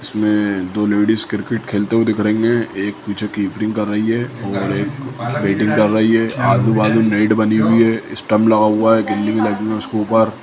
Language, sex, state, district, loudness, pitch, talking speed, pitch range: Hindi, male, Bihar, Lakhisarai, -16 LUFS, 110 Hz, 195 wpm, 105-115 Hz